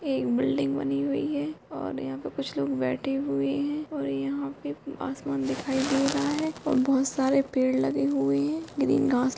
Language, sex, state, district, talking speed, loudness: Hindi, female, Chhattisgarh, Korba, 190 wpm, -27 LUFS